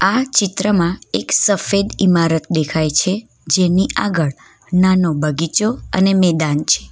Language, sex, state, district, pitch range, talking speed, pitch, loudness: Gujarati, female, Gujarat, Valsad, 160-200 Hz, 120 wpm, 180 Hz, -16 LUFS